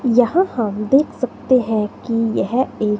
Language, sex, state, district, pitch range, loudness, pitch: Hindi, female, Himachal Pradesh, Shimla, 215-255 Hz, -18 LUFS, 235 Hz